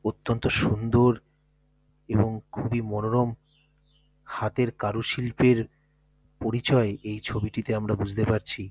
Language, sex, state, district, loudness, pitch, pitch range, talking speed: Bengali, male, West Bengal, North 24 Parganas, -26 LUFS, 120 Hz, 110-140 Hz, 90 wpm